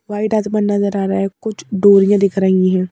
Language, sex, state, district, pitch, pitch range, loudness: Hindi, female, Madhya Pradesh, Bhopal, 200 Hz, 195-205 Hz, -15 LUFS